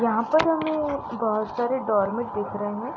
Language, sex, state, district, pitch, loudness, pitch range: Hindi, female, Bihar, East Champaran, 235 Hz, -25 LUFS, 215-285 Hz